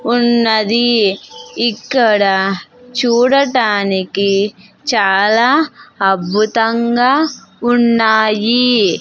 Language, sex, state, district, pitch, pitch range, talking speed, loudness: Telugu, female, Andhra Pradesh, Sri Satya Sai, 230 Hz, 200-245 Hz, 40 wpm, -13 LUFS